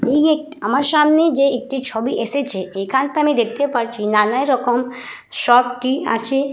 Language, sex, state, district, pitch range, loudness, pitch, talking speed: Bengali, female, West Bengal, Purulia, 235-280 Hz, -17 LUFS, 260 Hz, 155 wpm